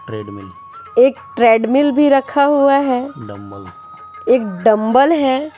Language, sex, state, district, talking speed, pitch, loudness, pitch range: Hindi, female, Bihar, Patna, 95 wpm, 270 Hz, -14 LUFS, 220-295 Hz